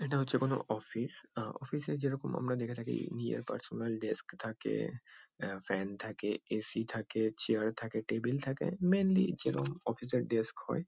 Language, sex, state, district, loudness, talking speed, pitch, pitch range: Bengali, male, West Bengal, Kolkata, -36 LUFS, 180 wpm, 115 Hz, 110-135 Hz